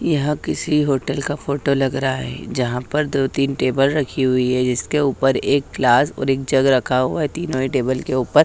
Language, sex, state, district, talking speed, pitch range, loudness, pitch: Hindi, female, Haryana, Charkhi Dadri, 220 wpm, 130-145 Hz, -19 LUFS, 135 Hz